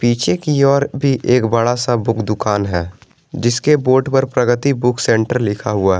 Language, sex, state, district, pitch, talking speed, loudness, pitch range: Hindi, male, Jharkhand, Garhwa, 120 Hz, 190 wpm, -16 LUFS, 110-135 Hz